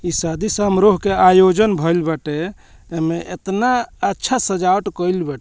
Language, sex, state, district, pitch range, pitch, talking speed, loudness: Bhojpuri, male, Bihar, Muzaffarpur, 170-205 Hz, 185 Hz, 155 wpm, -17 LUFS